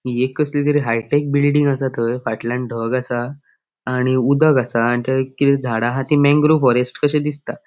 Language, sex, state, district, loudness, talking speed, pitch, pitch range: Konkani, male, Goa, North and South Goa, -18 LUFS, 190 wpm, 130 Hz, 120-145 Hz